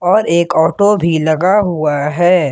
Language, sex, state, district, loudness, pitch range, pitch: Hindi, male, Jharkhand, Ranchi, -13 LUFS, 155-180 Hz, 170 Hz